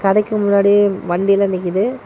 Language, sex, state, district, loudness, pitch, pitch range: Tamil, male, Tamil Nadu, Namakkal, -15 LUFS, 200 Hz, 190-205 Hz